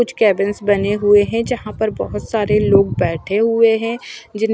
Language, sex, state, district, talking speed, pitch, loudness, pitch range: Hindi, male, Punjab, Fazilka, 185 wpm, 210 Hz, -16 LUFS, 205-230 Hz